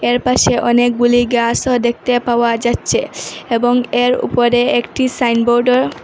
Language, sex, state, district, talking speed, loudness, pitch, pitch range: Bengali, female, Assam, Hailakandi, 120 wpm, -14 LUFS, 245 Hz, 240-245 Hz